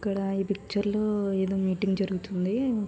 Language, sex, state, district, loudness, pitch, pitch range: Telugu, female, Andhra Pradesh, Srikakulam, -28 LUFS, 200 Hz, 195-205 Hz